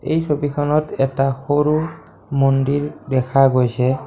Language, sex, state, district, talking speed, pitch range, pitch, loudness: Assamese, male, Assam, Kamrup Metropolitan, 105 wpm, 135-150 Hz, 135 Hz, -18 LUFS